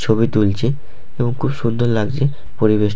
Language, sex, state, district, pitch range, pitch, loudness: Bengali, male, West Bengal, Malda, 110-125 Hz, 115 Hz, -18 LUFS